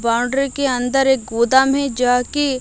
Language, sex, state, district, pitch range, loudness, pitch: Hindi, female, Odisha, Malkangiri, 245-275 Hz, -17 LUFS, 265 Hz